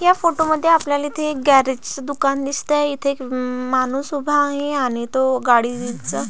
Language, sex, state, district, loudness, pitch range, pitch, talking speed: Marathi, female, Maharashtra, Solapur, -19 LUFS, 255-295 Hz, 280 Hz, 170 wpm